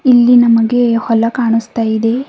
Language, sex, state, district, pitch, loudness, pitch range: Kannada, female, Karnataka, Bidar, 230 Hz, -12 LUFS, 225-245 Hz